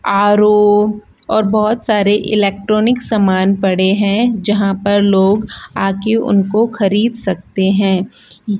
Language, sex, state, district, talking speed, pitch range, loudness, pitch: Hindi, female, Rajasthan, Bikaner, 110 wpm, 195-215 Hz, -14 LUFS, 205 Hz